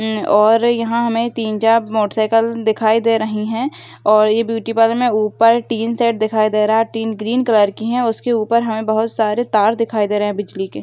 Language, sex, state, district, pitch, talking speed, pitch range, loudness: Hindi, female, Bihar, Begusarai, 225 Hz, 220 wpm, 215-230 Hz, -16 LUFS